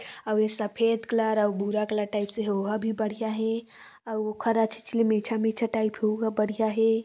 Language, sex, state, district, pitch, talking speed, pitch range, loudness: Hindi, female, Chhattisgarh, Korba, 220 Hz, 185 wpm, 215-225 Hz, -27 LUFS